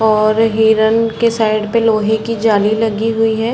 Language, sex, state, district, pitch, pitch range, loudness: Hindi, female, Chhattisgarh, Bastar, 220 Hz, 220-225 Hz, -14 LUFS